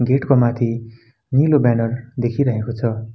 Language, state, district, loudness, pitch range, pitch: Nepali, West Bengal, Darjeeling, -18 LUFS, 115-130 Hz, 120 Hz